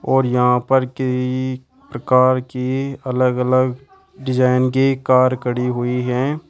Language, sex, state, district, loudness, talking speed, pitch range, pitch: Hindi, male, Uttar Pradesh, Shamli, -18 LUFS, 130 wpm, 125-130 Hz, 130 Hz